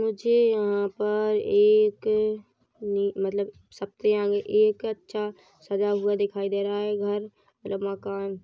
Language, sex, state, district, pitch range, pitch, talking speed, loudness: Hindi, female, Chhattisgarh, Bilaspur, 200-225 Hz, 210 Hz, 105 wpm, -25 LUFS